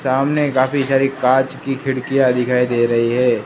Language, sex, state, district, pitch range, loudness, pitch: Hindi, male, Gujarat, Gandhinagar, 125-135 Hz, -17 LUFS, 130 Hz